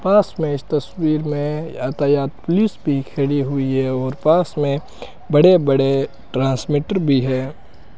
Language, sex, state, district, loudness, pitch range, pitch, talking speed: Hindi, male, Rajasthan, Bikaner, -19 LUFS, 135-155 Hz, 145 Hz, 145 wpm